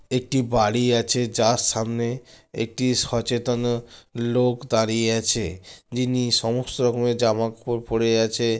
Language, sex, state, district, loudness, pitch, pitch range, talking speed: Bengali, male, West Bengal, Jalpaiguri, -22 LUFS, 120 Hz, 115-125 Hz, 120 wpm